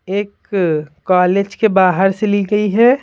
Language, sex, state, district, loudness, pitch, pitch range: Hindi, female, Bihar, Patna, -15 LUFS, 200 Hz, 185-210 Hz